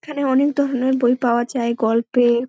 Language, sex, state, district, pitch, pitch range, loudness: Bengali, female, West Bengal, Dakshin Dinajpur, 245 Hz, 235-270 Hz, -19 LUFS